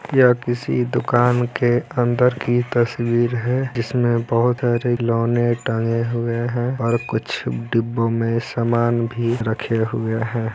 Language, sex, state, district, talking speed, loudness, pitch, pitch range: Hindi, male, Bihar, Araria, 135 wpm, -20 LUFS, 120 Hz, 115-120 Hz